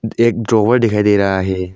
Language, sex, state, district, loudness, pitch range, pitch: Hindi, male, Arunachal Pradesh, Longding, -14 LUFS, 95-115 Hz, 105 Hz